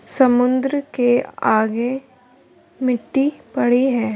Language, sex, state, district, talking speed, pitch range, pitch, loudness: Hindi, female, Chhattisgarh, Bilaspur, 85 wpm, 245-265 Hz, 255 Hz, -18 LUFS